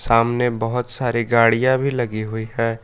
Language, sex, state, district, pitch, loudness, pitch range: Hindi, male, Jharkhand, Palamu, 115 Hz, -19 LUFS, 115-125 Hz